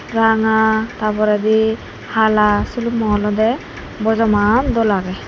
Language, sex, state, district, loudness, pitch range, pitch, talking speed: Chakma, female, Tripura, Dhalai, -16 LUFS, 210-225 Hz, 220 Hz, 90 wpm